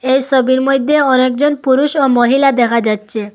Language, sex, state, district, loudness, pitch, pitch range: Bengali, female, Assam, Hailakandi, -12 LUFS, 260 Hz, 240-275 Hz